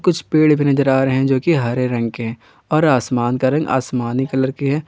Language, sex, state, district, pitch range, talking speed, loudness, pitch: Hindi, male, Jharkhand, Garhwa, 125-145 Hz, 245 wpm, -17 LUFS, 130 Hz